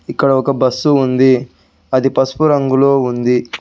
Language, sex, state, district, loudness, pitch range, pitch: Telugu, male, Telangana, Hyderabad, -14 LUFS, 125-140 Hz, 130 Hz